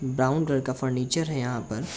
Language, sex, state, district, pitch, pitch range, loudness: Hindi, male, Uttar Pradesh, Jalaun, 130 Hz, 125-135 Hz, -27 LUFS